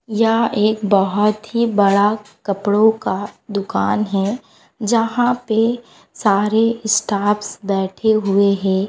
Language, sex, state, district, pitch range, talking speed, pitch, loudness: Hindi, female, Bihar, West Champaran, 200-225 Hz, 110 wpm, 210 Hz, -17 LUFS